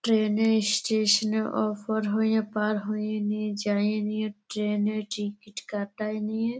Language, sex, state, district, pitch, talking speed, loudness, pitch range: Bengali, female, West Bengal, Jalpaiguri, 215 Hz, 165 wpm, -27 LUFS, 210-220 Hz